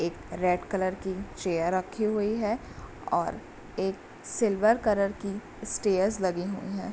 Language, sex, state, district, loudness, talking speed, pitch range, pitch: Hindi, female, Bihar, Bhagalpur, -29 LUFS, 145 wpm, 185-215 Hz, 195 Hz